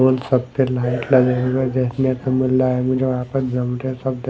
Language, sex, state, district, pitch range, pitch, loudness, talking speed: Hindi, male, Delhi, New Delhi, 125-130 Hz, 130 Hz, -19 LUFS, 235 wpm